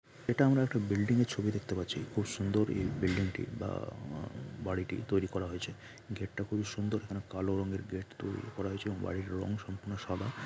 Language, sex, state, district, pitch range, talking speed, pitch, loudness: Bengali, male, West Bengal, Dakshin Dinajpur, 95-110 Hz, 195 wpm, 100 Hz, -35 LUFS